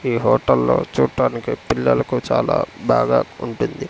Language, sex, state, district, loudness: Telugu, male, Andhra Pradesh, Sri Satya Sai, -19 LUFS